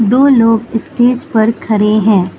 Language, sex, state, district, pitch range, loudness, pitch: Hindi, female, Manipur, Imphal West, 215-245 Hz, -11 LUFS, 225 Hz